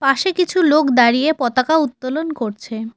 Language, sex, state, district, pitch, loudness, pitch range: Bengali, female, West Bengal, Cooch Behar, 275 Hz, -16 LUFS, 240-315 Hz